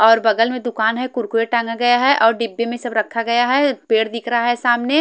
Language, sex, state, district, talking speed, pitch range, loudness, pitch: Hindi, female, Haryana, Jhajjar, 250 wpm, 225-245 Hz, -17 LUFS, 235 Hz